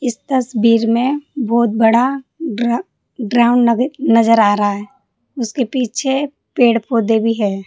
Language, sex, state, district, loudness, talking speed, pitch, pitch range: Hindi, female, Rajasthan, Jaipur, -15 LUFS, 140 wpm, 235 Hz, 230-260 Hz